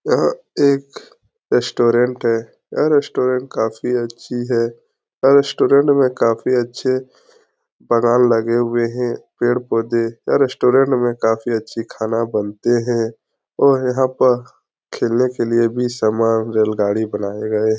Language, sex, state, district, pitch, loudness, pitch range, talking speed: Hindi, male, Bihar, Araria, 120 Hz, -17 LUFS, 115-130 Hz, 130 wpm